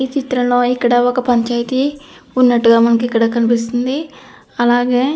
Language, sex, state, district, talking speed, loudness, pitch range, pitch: Telugu, female, Andhra Pradesh, Anantapur, 130 wpm, -15 LUFS, 235-260 Hz, 245 Hz